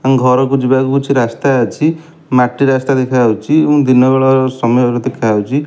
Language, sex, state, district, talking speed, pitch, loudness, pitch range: Odia, male, Odisha, Malkangiri, 125 wpm, 130 Hz, -12 LUFS, 125-140 Hz